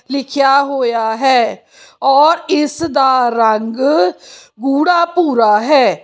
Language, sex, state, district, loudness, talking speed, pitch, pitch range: Punjabi, female, Chandigarh, Chandigarh, -13 LUFS, 100 wpm, 270 Hz, 235-295 Hz